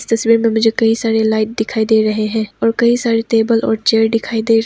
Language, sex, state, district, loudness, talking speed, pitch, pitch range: Hindi, female, Arunachal Pradesh, Papum Pare, -15 LUFS, 245 wpm, 225 Hz, 220-230 Hz